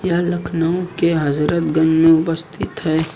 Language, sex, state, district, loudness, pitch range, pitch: Hindi, male, Uttar Pradesh, Lucknow, -17 LUFS, 160-175 Hz, 165 Hz